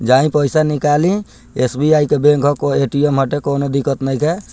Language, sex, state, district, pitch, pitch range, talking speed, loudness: Bhojpuri, male, Bihar, Muzaffarpur, 145 Hz, 140-150 Hz, 160 wpm, -15 LUFS